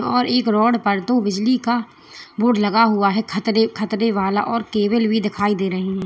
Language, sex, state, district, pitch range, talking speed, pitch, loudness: Hindi, female, Uttar Pradesh, Lalitpur, 205-235 Hz, 180 wpm, 220 Hz, -19 LUFS